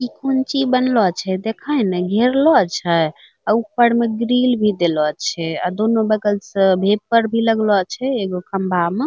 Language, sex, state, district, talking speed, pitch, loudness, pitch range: Angika, female, Bihar, Bhagalpur, 185 wpm, 215 Hz, -18 LUFS, 185-240 Hz